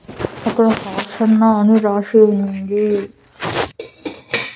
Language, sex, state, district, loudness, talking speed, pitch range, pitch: Telugu, female, Andhra Pradesh, Annamaya, -16 LUFS, 65 wpm, 205-225 Hz, 215 Hz